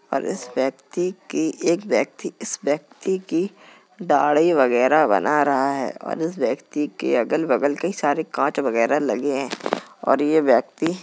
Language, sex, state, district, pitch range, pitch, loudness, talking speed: Hindi, male, Uttar Pradesh, Jalaun, 135-175 Hz, 150 Hz, -21 LUFS, 160 wpm